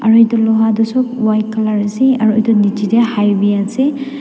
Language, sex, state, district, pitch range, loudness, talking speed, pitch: Nagamese, female, Nagaland, Dimapur, 215-235 Hz, -13 LUFS, 200 wpm, 220 Hz